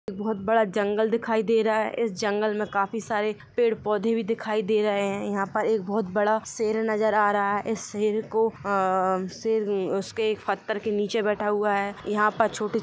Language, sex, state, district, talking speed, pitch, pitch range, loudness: Hindi, female, Jharkhand, Jamtara, 200 wpm, 215 Hz, 205-220 Hz, -25 LUFS